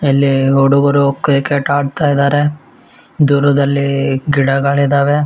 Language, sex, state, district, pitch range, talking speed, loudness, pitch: Kannada, male, Karnataka, Bellary, 140-145 Hz, 80 wpm, -13 LUFS, 140 Hz